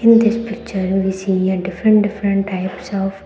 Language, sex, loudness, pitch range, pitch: English, female, -17 LUFS, 190-215 Hz, 195 Hz